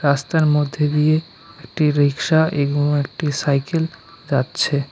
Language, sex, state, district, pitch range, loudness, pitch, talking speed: Bengali, male, West Bengal, Alipurduar, 140-160 Hz, -19 LUFS, 150 Hz, 110 wpm